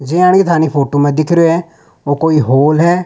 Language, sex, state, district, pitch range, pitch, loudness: Rajasthani, male, Rajasthan, Nagaur, 145-170 Hz, 160 Hz, -12 LUFS